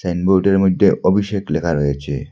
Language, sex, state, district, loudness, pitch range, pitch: Bengali, male, Assam, Hailakandi, -17 LUFS, 75-95 Hz, 90 Hz